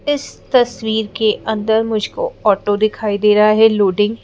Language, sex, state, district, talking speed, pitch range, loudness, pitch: Hindi, female, Madhya Pradesh, Bhopal, 170 wpm, 210-225 Hz, -15 LUFS, 220 Hz